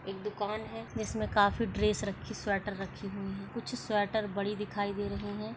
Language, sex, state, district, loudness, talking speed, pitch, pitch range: Hindi, female, Chhattisgarh, Sarguja, -34 LUFS, 205 wpm, 205 Hz, 195-210 Hz